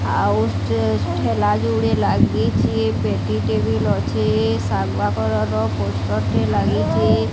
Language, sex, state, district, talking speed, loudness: Odia, female, Odisha, Sambalpur, 130 wpm, -19 LUFS